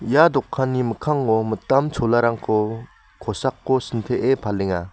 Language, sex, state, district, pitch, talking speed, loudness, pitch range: Garo, male, Meghalaya, West Garo Hills, 115 Hz, 95 wpm, -21 LUFS, 110-130 Hz